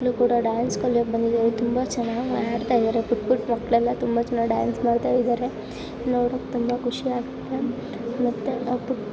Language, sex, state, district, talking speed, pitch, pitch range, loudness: Kannada, female, Karnataka, Belgaum, 145 wpm, 240 Hz, 235-250 Hz, -24 LUFS